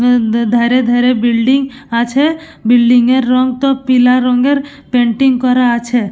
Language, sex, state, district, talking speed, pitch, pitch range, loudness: Bengali, female, West Bengal, Purulia, 135 wpm, 250 Hz, 240-265 Hz, -12 LUFS